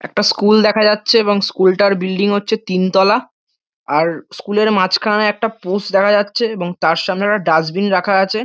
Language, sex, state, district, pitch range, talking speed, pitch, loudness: Bengali, male, West Bengal, North 24 Parganas, 185-210 Hz, 180 wpm, 200 Hz, -15 LUFS